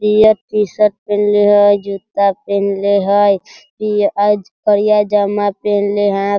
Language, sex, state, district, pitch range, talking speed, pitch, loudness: Hindi, male, Bihar, Sitamarhi, 200-210 Hz, 120 wpm, 205 Hz, -14 LUFS